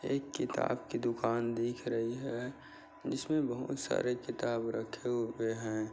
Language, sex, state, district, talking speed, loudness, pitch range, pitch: Hindi, male, Maharashtra, Sindhudurg, 140 wpm, -36 LUFS, 115-125 Hz, 120 Hz